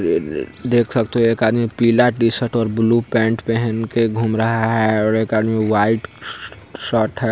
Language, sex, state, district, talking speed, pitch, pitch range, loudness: Hindi, male, Bihar, Sitamarhi, 170 wpm, 115 Hz, 110-115 Hz, -18 LUFS